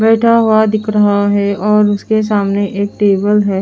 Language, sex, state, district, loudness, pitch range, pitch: Hindi, female, Haryana, Charkhi Dadri, -12 LUFS, 200-215 Hz, 210 Hz